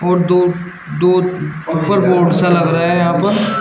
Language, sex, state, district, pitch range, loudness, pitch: Hindi, male, Uttar Pradesh, Shamli, 170-180 Hz, -14 LUFS, 180 Hz